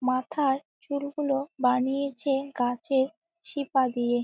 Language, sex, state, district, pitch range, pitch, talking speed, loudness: Bengali, female, West Bengal, Jalpaiguri, 255-285 Hz, 275 Hz, 85 wpm, -28 LUFS